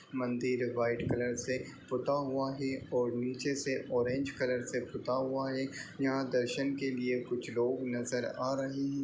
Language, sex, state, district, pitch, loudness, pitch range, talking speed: Hindi, male, Bihar, Lakhisarai, 130 Hz, -34 LUFS, 125-135 Hz, 175 wpm